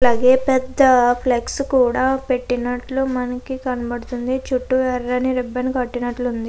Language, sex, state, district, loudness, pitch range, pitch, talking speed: Telugu, female, Andhra Pradesh, Krishna, -19 LUFS, 245-260 Hz, 250 Hz, 110 wpm